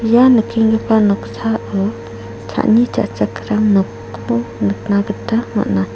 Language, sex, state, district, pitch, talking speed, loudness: Garo, female, Meghalaya, South Garo Hills, 205 Hz, 90 wpm, -16 LUFS